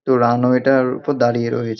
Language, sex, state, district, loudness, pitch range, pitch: Bengali, male, West Bengal, North 24 Parganas, -17 LUFS, 120-130 Hz, 125 Hz